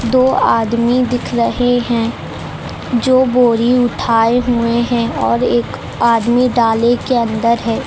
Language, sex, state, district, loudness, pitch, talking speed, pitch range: Hindi, female, Uttar Pradesh, Lucknow, -14 LUFS, 240 Hz, 130 wpm, 230-245 Hz